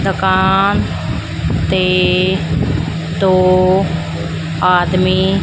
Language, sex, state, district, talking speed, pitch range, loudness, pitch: Punjabi, female, Punjab, Fazilka, 55 wpm, 165-190 Hz, -14 LUFS, 185 Hz